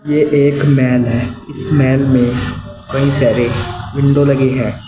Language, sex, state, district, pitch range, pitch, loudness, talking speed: Hindi, male, Uttar Pradesh, Saharanpur, 120-140 Hz, 130 Hz, -14 LUFS, 145 wpm